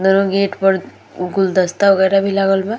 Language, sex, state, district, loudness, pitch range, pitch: Bhojpuri, female, Bihar, Gopalganj, -15 LUFS, 190-195 Hz, 195 Hz